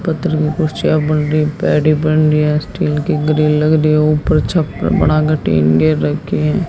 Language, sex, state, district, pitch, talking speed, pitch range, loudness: Hindi, female, Haryana, Jhajjar, 155 Hz, 170 wpm, 150-155 Hz, -14 LUFS